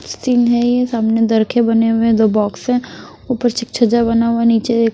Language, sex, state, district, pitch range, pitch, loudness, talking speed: Hindi, female, Chhattisgarh, Raipur, 225-240 Hz, 230 Hz, -15 LUFS, 220 wpm